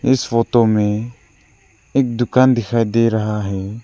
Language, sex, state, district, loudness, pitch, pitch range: Hindi, male, Arunachal Pradesh, Lower Dibang Valley, -17 LUFS, 115 Hz, 105-120 Hz